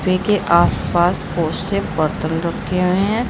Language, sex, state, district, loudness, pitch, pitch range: Hindi, female, Uttar Pradesh, Saharanpur, -17 LUFS, 180 Hz, 170-200 Hz